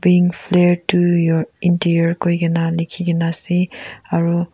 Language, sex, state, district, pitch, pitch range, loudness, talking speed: Nagamese, female, Nagaland, Kohima, 170 Hz, 165-175 Hz, -17 LUFS, 120 wpm